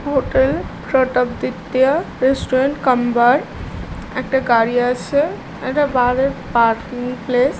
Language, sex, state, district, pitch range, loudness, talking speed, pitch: Bengali, female, West Bengal, Malda, 245-270 Hz, -17 LUFS, 110 wpm, 260 Hz